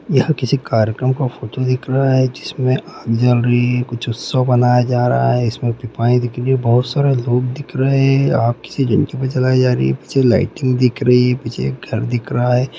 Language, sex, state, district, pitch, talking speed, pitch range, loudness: Hindi, male, Bihar, Gopalganj, 125 Hz, 195 wpm, 120-130 Hz, -16 LUFS